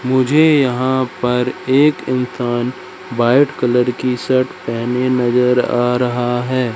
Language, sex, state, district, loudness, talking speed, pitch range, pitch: Hindi, male, Madhya Pradesh, Katni, -16 LUFS, 125 wpm, 125-130 Hz, 125 Hz